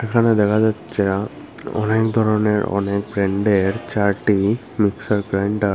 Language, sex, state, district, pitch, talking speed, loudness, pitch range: Bengali, male, Tripura, Unakoti, 105 Hz, 115 wpm, -19 LUFS, 100-110 Hz